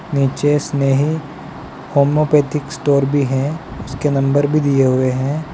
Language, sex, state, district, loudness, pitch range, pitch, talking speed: Hindi, male, Gujarat, Valsad, -16 LUFS, 135-150 Hz, 145 Hz, 130 wpm